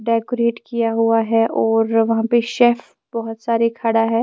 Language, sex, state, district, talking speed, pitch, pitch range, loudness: Hindi, female, Bihar, Kaimur, 170 wpm, 230 Hz, 225-235 Hz, -18 LUFS